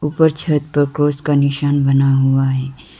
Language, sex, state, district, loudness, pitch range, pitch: Hindi, female, Arunachal Pradesh, Lower Dibang Valley, -16 LUFS, 135-145 Hz, 145 Hz